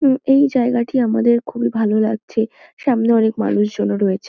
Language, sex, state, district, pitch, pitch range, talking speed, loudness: Bengali, female, West Bengal, Kolkata, 230 Hz, 215-250 Hz, 165 wpm, -17 LUFS